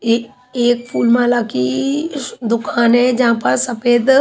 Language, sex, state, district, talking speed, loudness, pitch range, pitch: Hindi, female, Haryana, Charkhi Dadri, 145 wpm, -16 LUFS, 235-250 Hz, 240 Hz